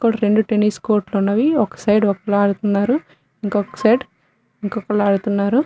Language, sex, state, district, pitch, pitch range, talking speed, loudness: Telugu, female, Telangana, Nalgonda, 210 Hz, 205-220 Hz, 125 wpm, -18 LUFS